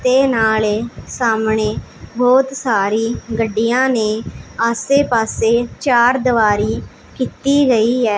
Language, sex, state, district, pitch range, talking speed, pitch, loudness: Punjabi, female, Punjab, Pathankot, 220-255 Hz, 95 wpm, 235 Hz, -16 LUFS